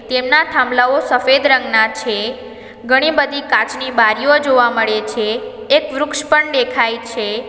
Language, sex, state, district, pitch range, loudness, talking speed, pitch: Gujarati, female, Gujarat, Valsad, 230-290 Hz, -14 LUFS, 135 wpm, 255 Hz